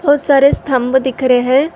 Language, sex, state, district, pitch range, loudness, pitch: Hindi, female, Telangana, Hyderabad, 255-285 Hz, -13 LUFS, 265 Hz